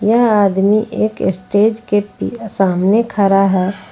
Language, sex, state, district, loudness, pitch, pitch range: Hindi, female, Jharkhand, Ranchi, -15 LUFS, 205 Hz, 195-220 Hz